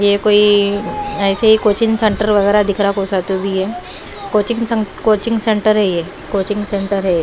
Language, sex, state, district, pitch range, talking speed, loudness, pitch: Hindi, female, Punjab, Pathankot, 200-215 Hz, 175 wpm, -15 LUFS, 205 Hz